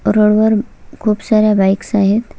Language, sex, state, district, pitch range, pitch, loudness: Marathi, female, Maharashtra, Solapur, 205-215 Hz, 215 Hz, -14 LUFS